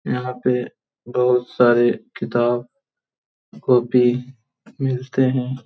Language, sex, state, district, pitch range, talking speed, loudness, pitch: Hindi, male, Jharkhand, Jamtara, 120-130 Hz, 85 wpm, -20 LUFS, 125 Hz